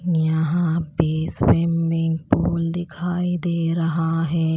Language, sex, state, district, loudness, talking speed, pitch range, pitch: Hindi, female, Chhattisgarh, Raipur, -21 LUFS, 105 wpm, 160-170 Hz, 165 Hz